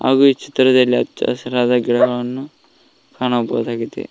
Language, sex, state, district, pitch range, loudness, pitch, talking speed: Kannada, male, Karnataka, Koppal, 120-130 Hz, -17 LUFS, 125 Hz, 90 wpm